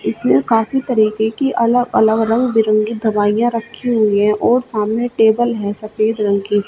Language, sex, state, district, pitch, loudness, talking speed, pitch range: Hindi, female, Uttar Pradesh, Shamli, 220 Hz, -15 LUFS, 170 wpm, 210-235 Hz